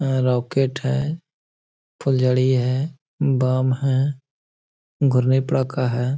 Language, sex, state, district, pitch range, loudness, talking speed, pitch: Hindi, male, Bihar, Bhagalpur, 125-140 Hz, -21 LUFS, 80 wpm, 130 Hz